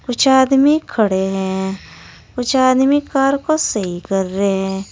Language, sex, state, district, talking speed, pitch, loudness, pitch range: Hindi, female, Uttar Pradesh, Saharanpur, 145 wpm, 245 Hz, -16 LUFS, 190-270 Hz